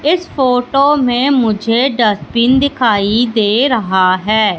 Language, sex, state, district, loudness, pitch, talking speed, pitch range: Hindi, female, Madhya Pradesh, Katni, -13 LUFS, 240 Hz, 115 wpm, 215-265 Hz